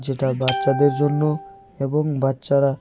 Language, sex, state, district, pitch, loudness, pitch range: Bengali, male, West Bengal, Alipurduar, 140 Hz, -21 LUFS, 135-150 Hz